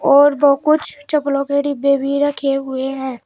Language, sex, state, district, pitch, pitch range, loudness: Hindi, female, Uttar Pradesh, Shamli, 280 Hz, 275-290 Hz, -16 LUFS